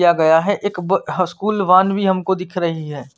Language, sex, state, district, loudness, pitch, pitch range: Hindi, male, Chandigarh, Chandigarh, -17 LUFS, 185 Hz, 165-195 Hz